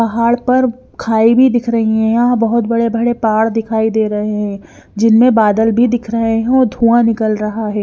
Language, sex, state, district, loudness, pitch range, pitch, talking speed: Hindi, female, Haryana, Jhajjar, -13 LUFS, 220-235 Hz, 230 Hz, 200 wpm